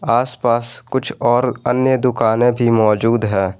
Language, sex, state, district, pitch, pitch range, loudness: Hindi, male, Jharkhand, Garhwa, 120 Hz, 115-125 Hz, -16 LUFS